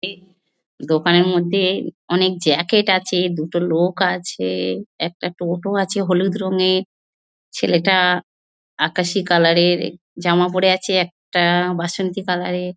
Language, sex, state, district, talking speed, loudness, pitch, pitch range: Bengali, female, West Bengal, North 24 Parganas, 115 wpm, -18 LUFS, 180 Hz, 175-185 Hz